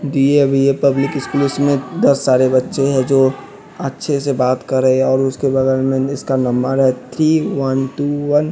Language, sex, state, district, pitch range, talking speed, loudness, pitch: Hindi, male, Bihar, West Champaran, 130-140 Hz, 185 wpm, -16 LUFS, 135 Hz